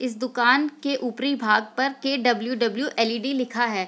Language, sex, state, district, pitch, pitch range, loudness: Hindi, female, Bihar, Sitamarhi, 250 Hz, 235-270 Hz, -23 LUFS